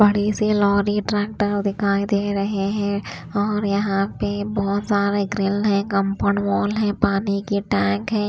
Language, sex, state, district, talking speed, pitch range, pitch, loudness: Hindi, female, Bihar, Kaimur, 160 wpm, 200-205 Hz, 200 Hz, -21 LUFS